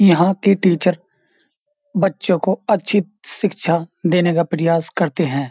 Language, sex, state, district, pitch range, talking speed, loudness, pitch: Hindi, male, Uttar Pradesh, Jyotiba Phule Nagar, 170-200 Hz, 130 wpm, -18 LUFS, 180 Hz